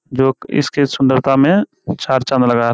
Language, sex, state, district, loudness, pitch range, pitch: Hindi, male, Bihar, Jamui, -15 LUFS, 130-145 Hz, 135 Hz